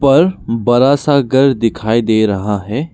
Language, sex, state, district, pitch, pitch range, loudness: Hindi, male, Arunachal Pradesh, Lower Dibang Valley, 120 Hz, 110-140 Hz, -13 LUFS